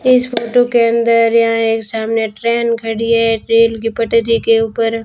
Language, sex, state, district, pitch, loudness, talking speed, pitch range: Hindi, female, Rajasthan, Bikaner, 230 Hz, -14 LUFS, 190 wpm, 225-230 Hz